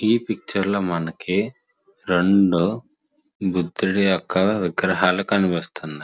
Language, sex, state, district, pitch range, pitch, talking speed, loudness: Telugu, male, Andhra Pradesh, Srikakulam, 85-105 Hz, 95 Hz, 90 wpm, -21 LUFS